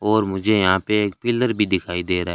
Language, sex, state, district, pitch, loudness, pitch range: Hindi, male, Rajasthan, Bikaner, 100 Hz, -20 LUFS, 95-110 Hz